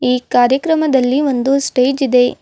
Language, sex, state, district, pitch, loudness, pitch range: Kannada, female, Karnataka, Bidar, 260 Hz, -14 LUFS, 250-275 Hz